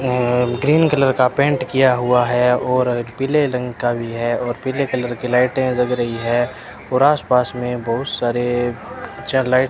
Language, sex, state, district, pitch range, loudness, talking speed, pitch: Hindi, male, Rajasthan, Bikaner, 120-130 Hz, -18 LUFS, 190 wpm, 125 Hz